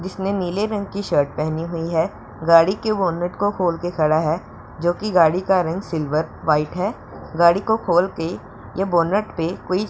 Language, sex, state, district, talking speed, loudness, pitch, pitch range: Hindi, male, Punjab, Pathankot, 200 wpm, -20 LUFS, 175 Hz, 165-195 Hz